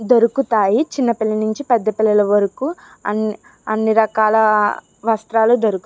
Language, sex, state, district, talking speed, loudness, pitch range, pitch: Telugu, female, Andhra Pradesh, Chittoor, 135 wpm, -17 LUFS, 215-235 Hz, 220 Hz